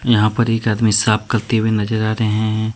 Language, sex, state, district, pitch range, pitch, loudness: Hindi, male, Jharkhand, Deoghar, 110-115 Hz, 110 Hz, -17 LUFS